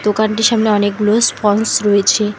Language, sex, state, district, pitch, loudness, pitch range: Bengali, female, West Bengal, Alipurduar, 210 Hz, -13 LUFS, 205-220 Hz